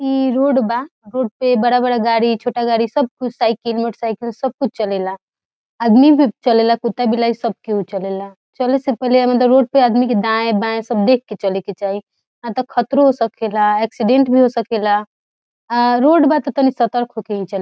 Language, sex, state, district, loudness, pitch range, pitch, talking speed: Bhojpuri, female, Bihar, Saran, -16 LUFS, 220-255 Hz, 235 Hz, 200 wpm